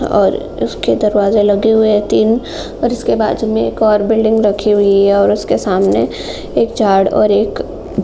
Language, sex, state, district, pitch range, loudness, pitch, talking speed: Hindi, female, Uttar Pradesh, Jalaun, 205-220 Hz, -13 LUFS, 210 Hz, 180 wpm